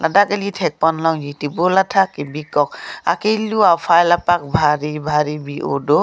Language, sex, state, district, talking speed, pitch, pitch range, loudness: Karbi, female, Assam, Karbi Anglong, 160 wpm, 160 Hz, 150-190 Hz, -17 LUFS